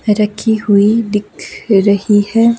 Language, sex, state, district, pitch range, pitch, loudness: Hindi, female, Himachal Pradesh, Shimla, 205-225 Hz, 210 Hz, -13 LUFS